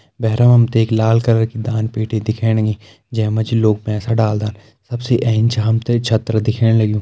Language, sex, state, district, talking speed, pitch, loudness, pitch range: Garhwali, male, Uttarakhand, Uttarkashi, 205 wpm, 110 Hz, -16 LUFS, 110-115 Hz